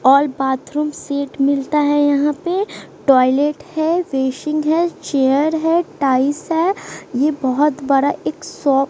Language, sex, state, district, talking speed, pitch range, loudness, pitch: Hindi, female, Bihar, West Champaran, 135 wpm, 275-315 Hz, -17 LUFS, 290 Hz